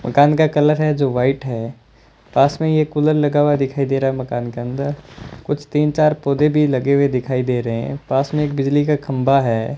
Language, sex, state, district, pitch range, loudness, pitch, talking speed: Hindi, male, Rajasthan, Bikaner, 130-150 Hz, -18 LUFS, 140 Hz, 235 wpm